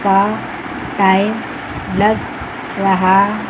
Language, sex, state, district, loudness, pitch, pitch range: Hindi, female, Chandigarh, Chandigarh, -16 LUFS, 195 Hz, 190-205 Hz